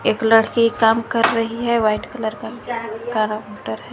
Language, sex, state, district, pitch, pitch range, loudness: Hindi, female, Jharkhand, Garhwa, 225 Hz, 215-230 Hz, -19 LUFS